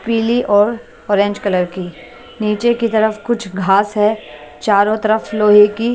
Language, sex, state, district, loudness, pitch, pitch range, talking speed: Hindi, female, Maharashtra, Washim, -15 LUFS, 210 Hz, 200-225 Hz, 160 wpm